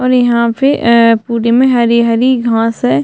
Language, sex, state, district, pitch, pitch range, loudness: Hindi, female, Uttarakhand, Tehri Garhwal, 235 Hz, 230-250 Hz, -11 LUFS